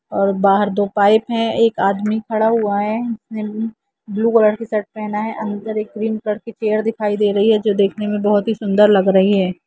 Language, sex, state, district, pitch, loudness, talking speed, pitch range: Hindi, female, Jharkhand, Jamtara, 215 Hz, -17 LUFS, 215 wpm, 205-220 Hz